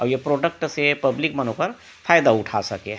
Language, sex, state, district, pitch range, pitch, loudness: Chhattisgarhi, male, Chhattisgarh, Rajnandgaon, 105-145 Hz, 130 Hz, -21 LUFS